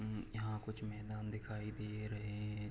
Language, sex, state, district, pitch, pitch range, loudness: Hindi, male, Jharkhand, Sahebganj, 105 Hz, 105-110 Hz, -45 LUFS